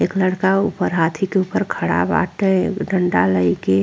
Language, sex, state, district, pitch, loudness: Bhojpuri, female, Uttar Pradesh, Ghazipur, 185 Hz, -18 LUFS